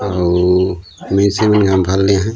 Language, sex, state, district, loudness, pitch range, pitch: Chhattisgarhi, male, Chhattisgarh, Raigarh, -14 LUFS, 90-100 Hz, 95 Hz